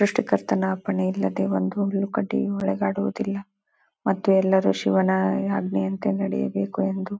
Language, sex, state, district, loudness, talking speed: Kannada, female, Karnataka, Gulbarga, -24 LUFS, 110 wpm